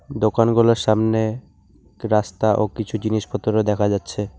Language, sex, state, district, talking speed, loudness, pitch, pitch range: Bengali, male, West Bengal, Alipurduar, 110 wpm, -20 LUFS, 110 Hz, 105-115 Hz